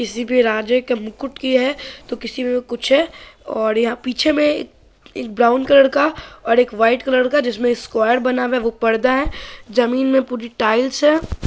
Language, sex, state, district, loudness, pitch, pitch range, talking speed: Hindi, female, Bihar, Saharsa, -17 LUFS, 250 Hz, 235-270 Hz, 195 wpm